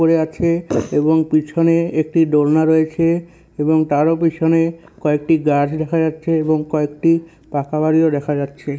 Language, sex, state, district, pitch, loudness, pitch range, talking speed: Bengali, male, West Bengal, North 24 Parganas, 160 Hz, -17 LUFS, 150-165 Hz, 135 wpm